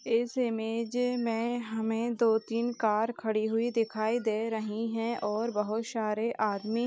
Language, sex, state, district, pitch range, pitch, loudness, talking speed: Hindi, female, Uttar Pradesh, Jalaun, 220-235 Hz, 225 Hz, -30 LUFS, 155 wpm